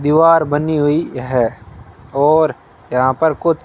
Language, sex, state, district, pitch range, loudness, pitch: Hindi, male, Rajasthan, Bikaner, 125-160 Hz, -15 LUFS, 145 Hz